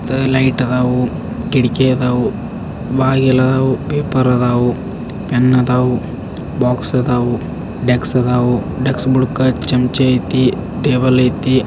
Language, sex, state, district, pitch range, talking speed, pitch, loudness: Kannada, male, Karnataka, Belgaum, 125-130 Hz, 110 wpm, 125 Hz, -15 LUFS